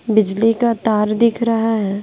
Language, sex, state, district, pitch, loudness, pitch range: Hindi, female, Bihar, Patna, 225 Hz, -16 LUFS, 210-230 Hz